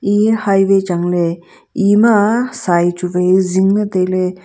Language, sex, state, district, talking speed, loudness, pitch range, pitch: Wancho, female, Arunachal Pradesh, Longding, 135 wpm, -14 LUFS, 180-205 Hz, 190 Hz